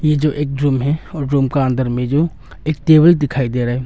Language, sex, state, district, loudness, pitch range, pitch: Hindi, male, Arunachal Pradesh, Longding, -16 LUFS, 130-150 Hz, 140 Hz